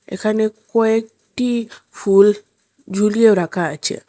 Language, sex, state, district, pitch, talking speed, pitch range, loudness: Bengali, female, Assam, Hailakandi, 210 Hz, 90 wpm, 200-225 Hz, -17 LUFS